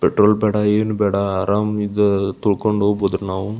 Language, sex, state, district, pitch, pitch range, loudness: Kannada, male, Karnataka, Belgaum, 105 Hz, 100-105 Hz, -18 LUFS